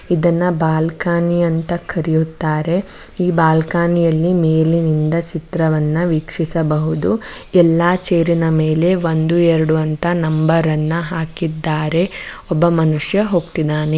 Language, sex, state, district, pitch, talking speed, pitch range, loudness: Kannada, female, Karnataka, Mysore, 165 Hz, 90 wpm, 160-175 Hz, -16 LUFS